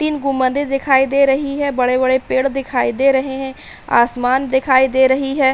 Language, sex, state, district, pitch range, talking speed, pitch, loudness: Hindi, female, Uttar Pradesh, Hamirpur, 260-275 Hz, 185 wpm, 265 Hz, -16 LUFS